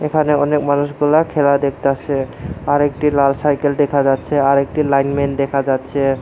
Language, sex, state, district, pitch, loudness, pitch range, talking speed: Bengali, male, Tripura, Unakoti, 140 Hz, -16 LUFS, 140-145 Hz, 155 wpm